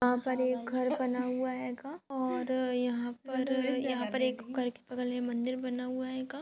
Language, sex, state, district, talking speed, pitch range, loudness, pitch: Hindi, female, Goa, North and South Goa, 160 wpm, 250-260 Hz, -34 LUFS, 255 Hz